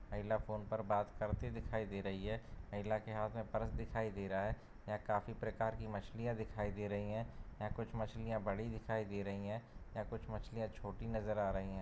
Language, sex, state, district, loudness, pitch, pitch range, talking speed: Hindi, male, Bihar, Darbhanga, -43 LUFS, 110 Hz, 105-110 Hz, 225 wpm